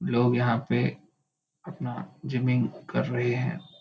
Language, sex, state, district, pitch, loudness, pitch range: Chhattisgarhi, male, Chhattisgarh, Bilaspur, 120 Hz, -28 LUFS, 120-130 Hz